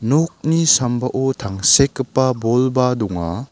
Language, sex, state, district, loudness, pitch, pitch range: Garo, male, Meghalaya, South Garo Hills, -17 LUFS, 125 Hz, 115-135 Hz